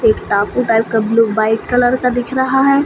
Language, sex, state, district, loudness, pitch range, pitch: Hindi, female, Jharkhand, Sahebganj, -14 LUFS, 225-260 Hz, 245 Hz